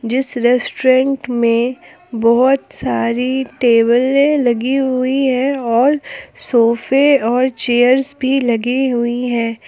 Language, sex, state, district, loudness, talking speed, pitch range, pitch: Hindi, female, Jharkhand, Palamu, -15 LUFS, 105 wpm, 235-265 Hz, 255 Hz